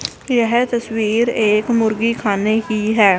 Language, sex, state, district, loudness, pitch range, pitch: Hindi, female, Punjab, Fazilka, -17 LUFS, 215-235 Hz, 225 Hz